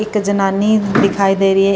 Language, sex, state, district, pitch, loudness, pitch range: Punjabi, female, Karnataka, Bangalore, 200 Hz, -14 LUFS, 195-210 Hz